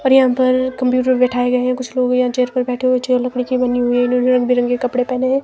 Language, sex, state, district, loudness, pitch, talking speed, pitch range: Hindi, female, Himachal Pradesh, Shimla, -16 LUFS, 250 Hz, 320 wpm, 250-255 Hz